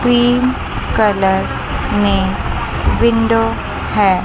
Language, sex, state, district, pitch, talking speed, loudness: Hindi, female, Chandigarh, Chandigarh, 205 Hz, 70 wpm, -15 LUFS